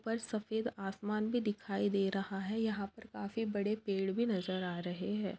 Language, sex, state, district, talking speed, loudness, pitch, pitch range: Hindi, female, Maharashtra, Aurangabad, 200 wpm, -37 LUFS, 205 Hz, 195-220 Hz